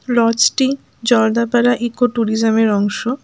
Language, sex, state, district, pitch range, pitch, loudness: Bengali, female, West Bengal, Alipurduar, 225-245 Hz, 235 Hz, -16 LUFS